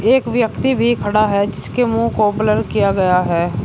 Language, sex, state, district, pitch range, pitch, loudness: Hindi, male, Uttar Pradesh, Shamli, 200-235 Hz, 215 Hz, -16 LUFS